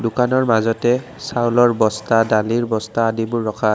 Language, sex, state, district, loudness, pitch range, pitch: Assamese, male, Assam, Kamrup Metropolitan, -18 LUFS, 110-120 Hz, 115 Hz